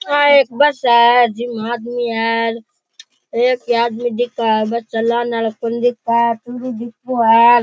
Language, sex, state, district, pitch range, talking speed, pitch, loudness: Rajasthani, male, Rajasthan, Churu, 230-245 Hz, 155 wpm, 235 Hz, -16 LUFS